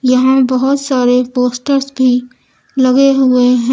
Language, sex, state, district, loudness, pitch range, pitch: Hindi, female, Uttar Pradesh, Lucknow, -12 LUFS, 250-265 Hz, 255 Hz